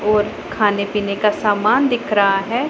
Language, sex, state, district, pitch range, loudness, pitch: Hindi, female, Punjab, Pathankot, 205-230 Hz, -17 LUFS, 210 Hz